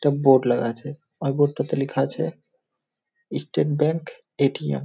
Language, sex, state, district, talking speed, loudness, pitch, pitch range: Bengali, male, West Bengal, Malda, 175 wpm, -23 LUFS, 145 Hz, 135-155 Hz